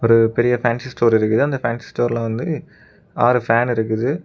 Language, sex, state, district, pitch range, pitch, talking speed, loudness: Tamil, male, Tamil Nadu, Kanyakumari, 115-125 Hz, 120 Hz, 170 wpm, -18 LUFS